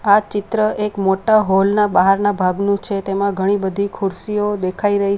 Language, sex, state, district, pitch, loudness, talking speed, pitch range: Gujarati, female, Gujarat, Valsad, 200 Hz, -17 LUFS, 185 wpm, 195-210 Hz